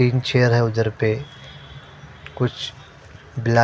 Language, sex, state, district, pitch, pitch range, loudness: Hindi, male, Punjab, Fazilka, 125 Hz, 115-130 Hz, -21 LUFS